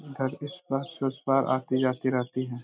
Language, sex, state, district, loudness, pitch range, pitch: Hindi, male, Jharkhand, Jamtara, -28 LUFS, 130-135 Hz, 135 Hz